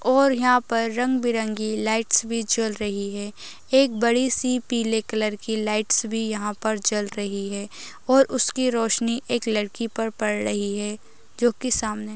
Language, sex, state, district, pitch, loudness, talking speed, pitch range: Hindi, female, Uttar Pradesh, Ghazipur, 225 Hz, -23 LUFS, 175 wpm, 215-240 Hz